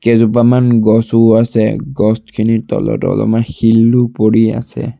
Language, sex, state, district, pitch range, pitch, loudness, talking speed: Assamese, male, Assam, Sonitpur, 110-120 Hz, 115 Hz, -12 LUFS, 110 wpm